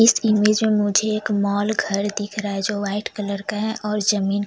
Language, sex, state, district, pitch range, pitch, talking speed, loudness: Hindi, female, Chhattisgarh, Jashpur, 200-215 Hz, 210 Hz, 240 wpm, -21 LUFS